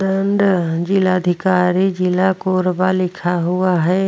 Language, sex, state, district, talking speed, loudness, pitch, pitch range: Hindi, female, Chhattisgarh, Korba, 120 wpm, -17 LUFS, 185 Hz, 180-190 Hz